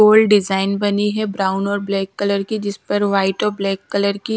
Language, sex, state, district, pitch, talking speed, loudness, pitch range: Hindi, female, Bihar, Patna, 200 Hz, 220 wpm, -18 LUFS, 195-210 Hz